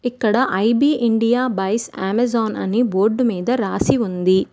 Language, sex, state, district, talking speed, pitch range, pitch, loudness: Telugu, female, Telangana, Mahabubabad, 145 wpm, 195-245 Hz, 230 Hz, -18 LUFS